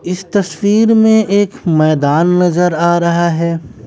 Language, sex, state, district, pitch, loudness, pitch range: Hindi, male, Bihar, West Champaran, 175 Hz, -12 LUFS, 165-200 Hz